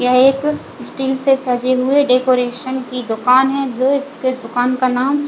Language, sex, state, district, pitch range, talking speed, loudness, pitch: Hindi, female, Chhattisgarh, Bilaspur, 250-270 Hz, 170 wpm, -16 LUFS, 255 Hz